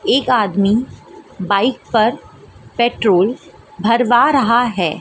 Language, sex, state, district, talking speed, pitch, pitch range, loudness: Hindi, female, Madhya Pradesh, Dhar, 95 wpm, 235 Hz, 200-250 Hz, -15 LUFS